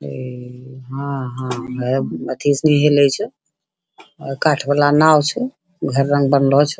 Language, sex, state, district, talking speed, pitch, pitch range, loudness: Angika, female, Bihar, Bhagalpur, 150 wpm, 140 Hz, 130-145 Hz, -17 LUFS